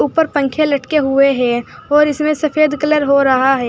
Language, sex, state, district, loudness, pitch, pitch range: Hindi, female, Uttar Pradesh, Saharanpur, -14 LUFS, 290 Hz, 270-305 Hz